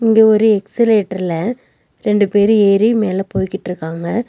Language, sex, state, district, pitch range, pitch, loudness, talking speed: Tamil, female, Tamil Nadu, Nilgiris, 190-220 Hz, 205 Hz, -15 LUFS, 110 wpm